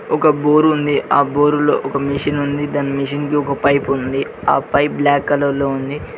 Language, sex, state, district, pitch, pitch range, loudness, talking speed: Telugu, male, Telangana, Mahabubabad, 145 Hz, 140-145 Hz, -16 LUFS, 185 wpm